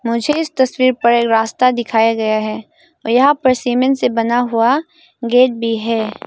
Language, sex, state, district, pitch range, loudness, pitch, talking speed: Hindi, female, Arunachal Pradesh, Lower Dibang Valley, 230-260 Hz, -15 LUFS, 245 Hz, 170 wpm